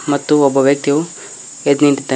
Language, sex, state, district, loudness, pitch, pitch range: Kannada, male, Karnataka, Koppal, -14 LUFS, 140 Hz, 140-145 Hz